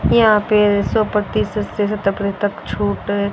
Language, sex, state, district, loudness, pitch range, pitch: Hindi, female, Haryana, Rohtak, -18 LUFS, 200-210 Hz, 205 Hz